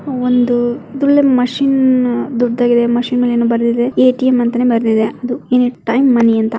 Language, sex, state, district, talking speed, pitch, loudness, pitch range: Kannada, female, Karnataka, Mysore, 165 wpm, 245 Hz, -13 LUFS, 235-255 Hz